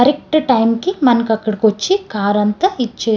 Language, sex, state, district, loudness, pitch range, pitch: Telugu, female, Andhra Pradesh, Srikakulam, -15 LUFS, 215-290 Hz, 230 Hz